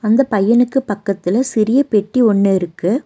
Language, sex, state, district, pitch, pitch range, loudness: Tamil, female, Tamil Nadu, Nilgiris, 215 Hz, 200-250 Hz, -15 LUFS